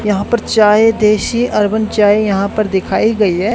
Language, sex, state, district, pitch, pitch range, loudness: Hindi, female, Haryana, Charkhi Dadri, 210 Hz, 205-220 Hz, -13 LUFS